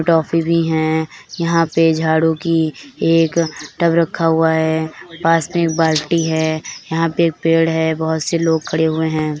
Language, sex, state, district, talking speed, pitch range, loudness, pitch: Hindi, female, Bihar, Begusarai, 190 wpm, 160-165 Hz, -17 LUFS, 160 Hz